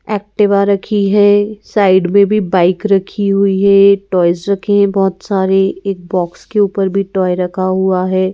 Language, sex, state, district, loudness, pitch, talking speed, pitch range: Hindi, female, Madhya Pradesh, Bhopal, -13 LUFS, 195 Hz, 180 wpm, 185-200 Hz